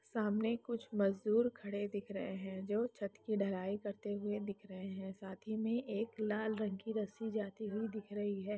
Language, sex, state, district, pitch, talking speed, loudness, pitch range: Hindi, female, Bihar, Lakhisarai, 210 Hz, 205 wpm, -40 LUFS, 200-220 Hz